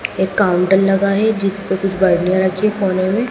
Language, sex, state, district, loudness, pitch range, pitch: Hindi, male, Madhya Pradesh, Dhar, -16 LUFS, 190-200 Hz, 195 Hz